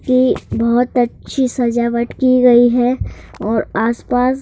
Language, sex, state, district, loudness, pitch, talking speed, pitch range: Hindi, male, Madhya Pradesh, Bhopal, -15 LUFS, 245 Hz, 120 wpm, 235-255 Hz